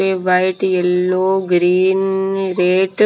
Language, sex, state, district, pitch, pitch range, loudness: Hindi, female, Himachal Pradesh, Shimla, 185 Hz, 180-190 Hz, -16 LUFS